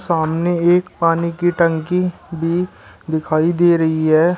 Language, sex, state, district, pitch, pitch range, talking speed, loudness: Hindi, male, Uttar Pradesh, Shamli, 170 Hz, 160-175 Hz, 135 wpm, -17 LUFS